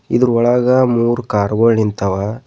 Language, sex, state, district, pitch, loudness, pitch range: Kannada, male, Karnataka, Bidar, 115 Hz, -14 LUFS, 105-125 Hz